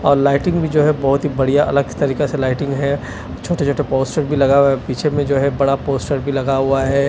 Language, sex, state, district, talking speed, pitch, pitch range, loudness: Hindi, male, Delhi, New Delhi, 245 wpm, 140 Hz, 135-145 Hz, -17 LUFS